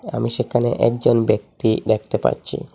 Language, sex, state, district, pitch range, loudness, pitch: Bengali, male, Assam, Hailakandi, 115-120 Hz, -19 LUFS, 120 Hz